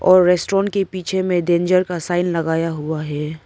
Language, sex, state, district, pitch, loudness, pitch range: Hindi, female, Arunachal Pradesh, Papum Pare, 175 Hz, -19 LUFS, 165-185 Hz